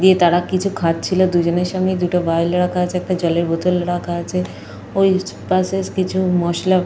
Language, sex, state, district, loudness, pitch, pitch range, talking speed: Bengali, female, Jharkhand, Jamtara, -18 LUFS, 180 Hz, 175-185 Hz, 175 wpm